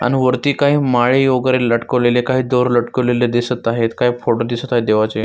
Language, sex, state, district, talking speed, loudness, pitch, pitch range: Marathi, male, Maharashtra, Solapur, 185 wpm, -16 LUFS, 125 Hz, 120-130 Hz